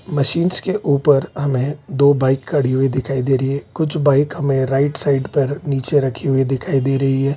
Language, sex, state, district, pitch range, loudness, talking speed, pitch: Hindi, male, Bihar, Gaya, 135-145 Hz, -17 LUFS, 205 wpm, 140 Hz